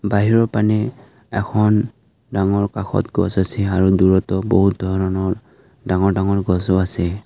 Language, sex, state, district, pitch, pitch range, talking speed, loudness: Assamese, male, Assam, Kamrup Metropolitan, 100 Hz, 95-105 Hz, 125 wpm, -18 LUFS